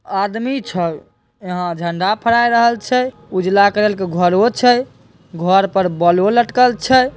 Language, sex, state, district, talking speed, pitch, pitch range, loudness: Maithili, female, Bihar, Begusarai, 140 wpm, 205 Hz, 180-240 Hz, -15 LUFS